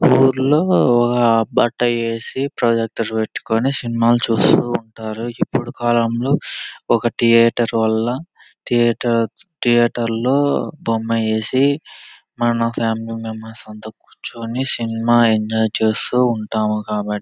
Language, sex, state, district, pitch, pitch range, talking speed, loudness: Telugu, male, Andhra Pradesh, Anantapur, 115 Hz, 110-120 Hz, 105 wpm, -18 LUFS